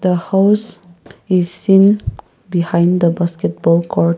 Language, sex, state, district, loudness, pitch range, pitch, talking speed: English, male, Nagaland, Kohima, -15 LUFS, 170-195 Hz, 175 Hz, 115 wpm